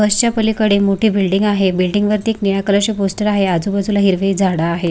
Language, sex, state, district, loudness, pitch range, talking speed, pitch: Marathi, female, Maharashtra, Sindhudurg, -15 LUFS, 195-210 Hz, 220 wpm, 200 Hz